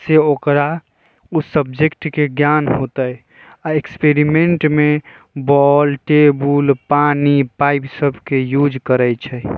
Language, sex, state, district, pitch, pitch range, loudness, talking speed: Bajjika, male, Bihar, Vaishali, 145 Hz, 135-150 Hz, -15 LUFS, 120 wpm